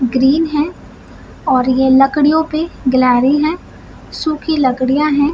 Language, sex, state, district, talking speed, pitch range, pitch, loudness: Hindi, female, Bihar, Samastipur, 135 wpm, 260-310 Hz, 285 Hz, -14 LUFS